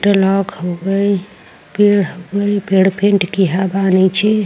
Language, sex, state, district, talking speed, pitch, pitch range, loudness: Bhojpuri, female, Uttar Pradesh, Deoria, 135 wpm, 195 Hz, 190-200 Hz, -15 LUFS